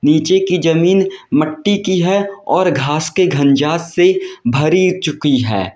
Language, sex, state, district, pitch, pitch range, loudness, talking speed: Hindi, male, Uttar Pradesh, Lalitpur, 170 Hz, 150-185 Hz, -14 LUFS, 145 wpm